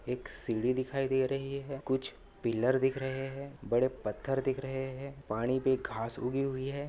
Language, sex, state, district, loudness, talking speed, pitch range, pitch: Hindi, male, Maharashtra, Nagpur, -33 LUFS, 190 wpm, 125-135 Hz, 130 Hz